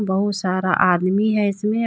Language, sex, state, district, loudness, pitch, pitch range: Hindi, female, Jharkhand, Deoghar, -19 LUFS, 200 Hz, 185-210 Hz